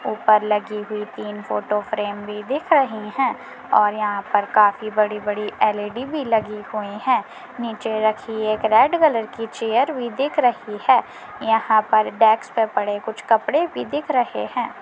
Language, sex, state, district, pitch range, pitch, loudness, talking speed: Hindi, female, Bihar, Jamui, 210-240 Hz, 220 Hz, -20 LUFS, 170 wpm